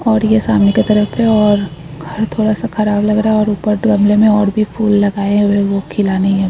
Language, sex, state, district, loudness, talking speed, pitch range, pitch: Hindi, female, Chhattisgarh, Bilaspur, -13 LUFS, 240 wpm, 200-215 Hz, 210 Hz